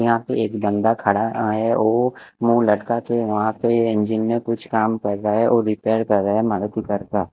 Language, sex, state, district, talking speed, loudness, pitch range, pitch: Hindi, male, Chandigarh, Chandigarh, 195 wpm, -20 LUFS, 105-115 Hz, 110 Hz